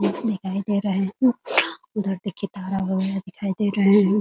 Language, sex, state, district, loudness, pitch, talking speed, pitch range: Hindi, female, Bihar, Muzaffarpur, -23 LUFS, 200 Hz, 170 wpm, 195-205 Hz